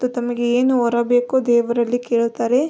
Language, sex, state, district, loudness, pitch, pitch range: Kannada, female, Karnataka, Belgaum, -18 LUFS, 240 Hz, 235-250 Hz